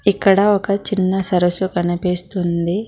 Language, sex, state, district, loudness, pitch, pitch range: Telugu, female, Telangana, Mahabubabad, -18 LUFS, 190 Hz, 175-200 Hz